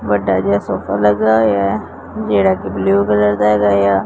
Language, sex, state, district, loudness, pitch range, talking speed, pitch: Punjabi, male, Punjab, Pathankot, -15 LUFS, 95-105 Hz, 190 wpm, 100 Hz